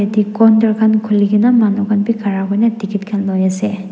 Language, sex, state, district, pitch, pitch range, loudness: Nagamese, female, Nagaland, Dimapur, 210 Hz, 200-220 Hz, -14 LUFS